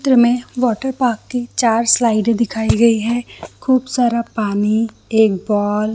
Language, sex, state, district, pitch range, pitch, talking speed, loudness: Hindi, female, Chhattisgarh, Bilaspur, 220-245 Hz, 235 Hz, 160 wpm, -16 LUFS